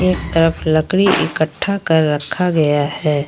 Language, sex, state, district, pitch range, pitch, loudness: Hindi, female, Jharkhand, Ranchi, 150-180 Hz, 160 Hz, -16 LUFS